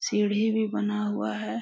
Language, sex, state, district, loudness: Hindi, female, Jharkhand, Sahebganj, -27 LUFS